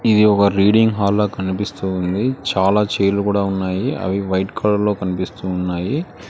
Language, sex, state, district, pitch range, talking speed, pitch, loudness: Telugu, male, Telangana, Hyderabad, 95-105 Hz, 150 wpm, 100 Hz, -18 LUFS